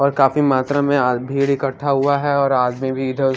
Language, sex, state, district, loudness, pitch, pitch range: Hindi, female, Haryana, Charkhi Dadri, -18 LUFS, 135 Hz, 130-140 Hz